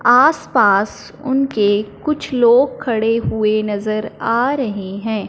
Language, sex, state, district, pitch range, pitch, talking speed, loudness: Hindi, female, Punjab, Fazilka, 210-260 Hz, 225 Hz, 125 wpm, -17 LUFS